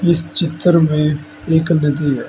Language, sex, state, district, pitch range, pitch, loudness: Hindi, male, Uttar Pradesh, Saharanpur, 150-165 Hz, 160 Hz, -16 LUFS